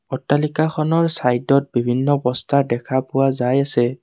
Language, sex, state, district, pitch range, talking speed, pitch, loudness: Assamese, male, Assam, Kamrup Metropolitan, 125-150 Hz, 120 wpm, 135 Hz, -19 LUFS